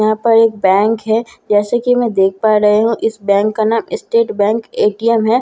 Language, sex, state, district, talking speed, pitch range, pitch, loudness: Hindi, female, Bihar, Katihar, 220 wpm, 210-230 Hz, 220 Hz, -14 LUFS